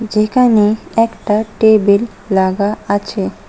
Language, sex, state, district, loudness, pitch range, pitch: Bengali, female, West Bengal, Cooch Behar, -14 LUFS, 200-220 Hz, 210 Hz